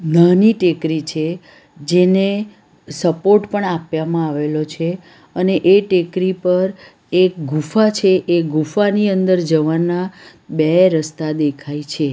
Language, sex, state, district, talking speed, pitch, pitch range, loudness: Gujarati, female, Gujarat, Valsad, 120 wpm, 175 Hz, 155-185 Hz, -16 LUFS